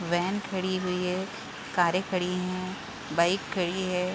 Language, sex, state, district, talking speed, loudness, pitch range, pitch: Hindi, female, Bihar, East Champaran, 145 wpm, -29 LUFS, 180-185 Hz, 185 Hz